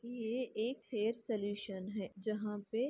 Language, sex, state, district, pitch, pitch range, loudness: Hindi, female, Bihar, Madhepura, 220 Hz, 205-235 Hz, -40 LUFS